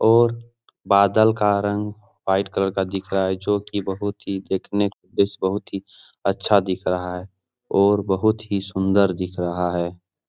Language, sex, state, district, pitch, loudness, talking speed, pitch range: Hindi, male, Bihar, Supaul, 100 Hz, -22 LUFS, 180 wpm, 95-105 Hz